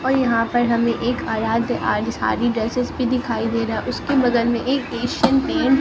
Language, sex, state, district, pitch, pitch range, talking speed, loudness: Hindi, male, Bihar, Katihar, 240 Hz, 230-260 Hz, 175 wpm, -20 LUFS